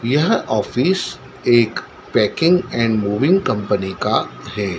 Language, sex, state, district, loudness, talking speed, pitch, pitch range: Hindi, male, Madhya Pradesh, Dhar, -18 LUFS, 115 wpm, 115 Hz, 105-145 Hz